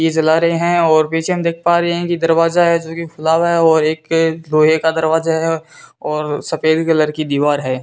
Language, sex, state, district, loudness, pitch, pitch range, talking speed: Hindi, female, Rajasthan, Bikaner, -15 LUFS, 160 Hz, 155-165 Hz, 240 wpm